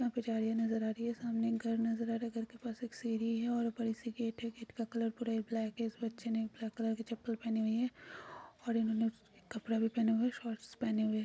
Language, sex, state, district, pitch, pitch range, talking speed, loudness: Hindi, female, Chhattisgarh, Jashpur, 230 Hz, 225-235 Hz, 270 wpm, -37 LUFS